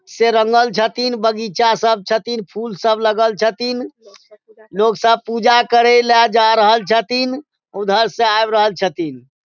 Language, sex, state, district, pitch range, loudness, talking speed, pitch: Maithili, male, Bihar, Supaul, 215-235 Hz, -15 LUFS, 150 wpm, 225 Hz